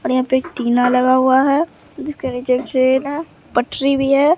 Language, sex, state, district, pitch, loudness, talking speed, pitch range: Hindi, female, Bihar, Katihar, 260 Hz, -17 LUFS, 220 wpm, 255-285 Hz